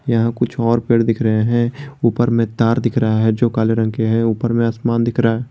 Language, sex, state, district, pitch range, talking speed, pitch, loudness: Hindi, male, Jharkhand, Garhwa, 115-120 Hz, 260 wpm, 115 Hz, -17 LUFS